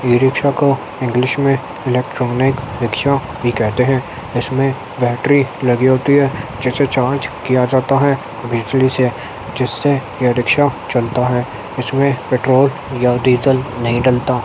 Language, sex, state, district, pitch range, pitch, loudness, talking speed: Hindi, male, Uttar Pradesh, Jyotiba Phule Nagar, 125-135 Hz, 130 Hz, -16 LUFS, 135 wpm